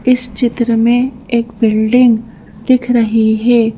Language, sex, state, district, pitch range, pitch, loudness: Hindi, female, Madhya Pradesh, Bhopal, 225-245 Hz, 235 Hz, -13 LUFS